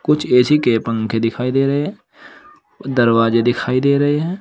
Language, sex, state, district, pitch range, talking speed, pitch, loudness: Hindi, male, Uttar Pradesh, Saharanpur, 120-150 Hz, 175 wpm, 135 Hz, -16 LUFS